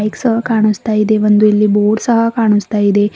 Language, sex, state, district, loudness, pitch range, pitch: Kannada, female, Karnataka, Bidar, -13 LUFS, 210-225 Hz, 215 Hz